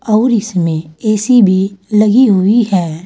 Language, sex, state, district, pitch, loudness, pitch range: Hindi, female, Uttar Pradesh, Saharanpur, 210 Hz, -12 LUFS, 185-225 Hz